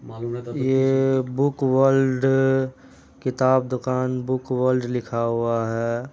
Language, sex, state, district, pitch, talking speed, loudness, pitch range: Hindi, male, Bihar, Araria, 130 Hz, 100 wpm, -22 LUFS, 125-135 Hz